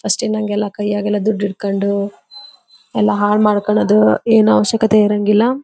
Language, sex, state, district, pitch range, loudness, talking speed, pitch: Kannada, female, Karnataka, Belgaum, 200-215 Hz, -15 LUFS, 125 wpm, 210 Hz